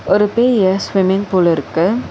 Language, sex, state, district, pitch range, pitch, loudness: Tamil, female, Tamil Nadu, Chennai, 185-210 Hz, 195 Hz, -15 LUFS